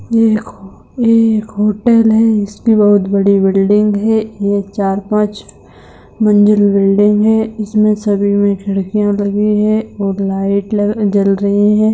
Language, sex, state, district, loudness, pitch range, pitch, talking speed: Hindi, female, Bihar, Lakhisarai, -13 LUFS, 200-215 Hz, 210 Hz, 150 wpm